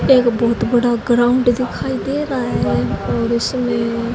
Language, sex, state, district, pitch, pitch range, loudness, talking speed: Hindi, female, Haryana, Jhajjar, 240 Hz, 235-250 Hz, -17 LUFS, 145 wpm